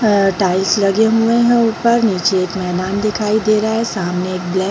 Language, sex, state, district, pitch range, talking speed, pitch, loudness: Hindi, female, Bihar, Jahanabad, 185-220 Hz, 215 wpm, 200 Hz, -15 LUFS